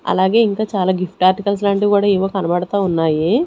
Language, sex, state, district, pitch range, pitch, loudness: Telugu, female, Andhra Pradesh, Sri Satya Sai, 185-205 Hz, 195 Hz, -16 LUFS